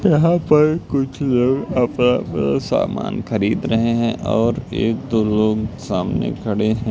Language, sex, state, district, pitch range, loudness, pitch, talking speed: Hindi, male, Madhya Pradesh, Katni, 110-135 Hz, -19 LUFS, 120 Hz, 145 wpm